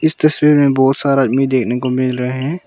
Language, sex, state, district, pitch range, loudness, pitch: Hindi, male, Arunachal Pradesh, Longding, 130-150 Hz, -14 LUFS, 135 Hz